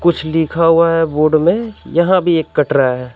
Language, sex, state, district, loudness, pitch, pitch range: Hindi, male, Bihar, Katihar, -14 LUFS, 165 Hz, 155-170 Hz